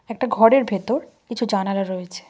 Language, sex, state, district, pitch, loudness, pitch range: Bengali, female, West Bengal, Cooch Behar, 230 Hz, -20 LUFS, 195-255 Hz